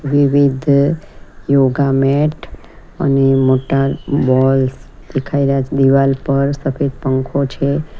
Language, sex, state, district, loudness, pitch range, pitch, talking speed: Gujarati, female, Gujarat, Valsad, -15 LUFS, 135-140 Hz, 140 Hz, 105 wpm